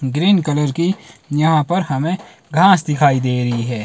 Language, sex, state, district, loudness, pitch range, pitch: Hindi, male, Himachal Pradesh, Shimla, -16 LUFS, 135-175 Hz, 150 Hz